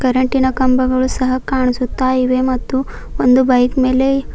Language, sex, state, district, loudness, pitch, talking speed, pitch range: Kannada, female, Karnataka, Bidar, -15 LUFS, 255 Hz, 125 wpm, 255-260 Hz